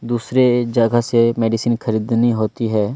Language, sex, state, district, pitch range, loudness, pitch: Hindi, male, Chhattisgarh, Kabirdham, 115-120 Hz, -17 LUFS, 115 Hz